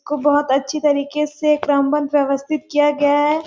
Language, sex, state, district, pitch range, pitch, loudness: Hindi, female, Chhattisgarh, Sarguja, 285-300 Hz, 295 Hz, -18 LUFS